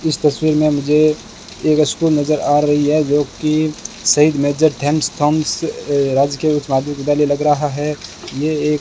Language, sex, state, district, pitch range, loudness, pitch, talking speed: Hindi, male, Rajasthan, Bikaner, 145-155 Hz, -16 LUFS, 150 Hz, 165 wpm